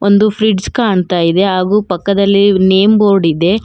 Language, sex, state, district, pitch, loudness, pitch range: Kannada, female, Karnataka, Bangalore, 200 Hz, -11 LUFS, 185-205 Hz